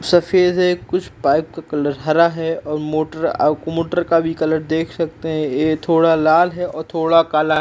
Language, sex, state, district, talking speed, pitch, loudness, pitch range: Hindi, male, Uttar Pradesh, Jalaun, 205 wpm, 160 Hz, -18 LUFS, 155-170 Hz